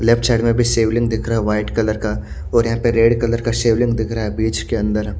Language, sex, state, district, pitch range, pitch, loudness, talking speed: Hindi, male, Haryana, Charkhi Dadri, 110-115 Hz, 115 Hz, -18 LUFS, 265 wpm